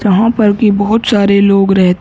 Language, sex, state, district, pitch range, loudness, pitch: Hindi, male, Uttar Pradesh, Gorakhpur, 195-215 Hz, -10 LUFS, 200 Hz